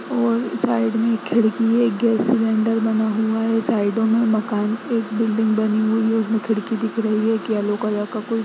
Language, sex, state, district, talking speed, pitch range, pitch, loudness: Hindi, female, Bihar, Lakhisarai, 205 wpm, 215-225 Hz, 225 Hz, -20 LUFS